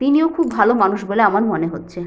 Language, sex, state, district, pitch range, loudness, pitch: Bengali, female, West Bengal, Jhargram, 180-270 Hz, -17 LUFS, 205 Hz